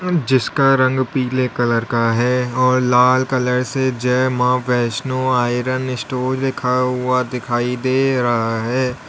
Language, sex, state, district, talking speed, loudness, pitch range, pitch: Hindi, male, Uttar Pradesh, Lalitpur, 145 wpm, -17 LUFS, 125-130 Hz, 125 Hz